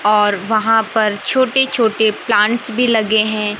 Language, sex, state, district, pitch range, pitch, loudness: Hindi, male, Madhya Pradesh, Katni, 210-235 Hz, 220 Hz, -15 LUFS